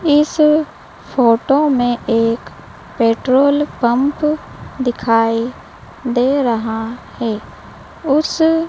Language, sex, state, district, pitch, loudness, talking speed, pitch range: Hindi, female, Madhya Pradesh, Dhar, 255 Hz, -16 LUFS, 75 wpm, 230-295 Hz